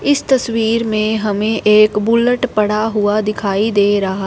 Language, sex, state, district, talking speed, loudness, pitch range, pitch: Hindi, female, Punjab, Fazilka, 155 wpm, -15 LUFS, 210-230 Hz, 215 Hz